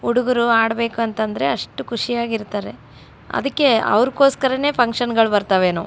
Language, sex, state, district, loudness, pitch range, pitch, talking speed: Kannada, female, Karnataka, Raichur, -18 LUFS, 220-250 Hz, 235 Hz, 80 wpm